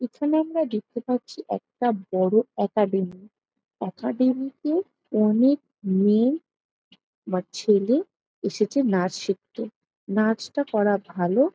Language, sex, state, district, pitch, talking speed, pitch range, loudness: Bengali, female, West Bengal, Jalpaiguri, 220 Hz, 95 wpm, 200-265 Hz, -24 LUFS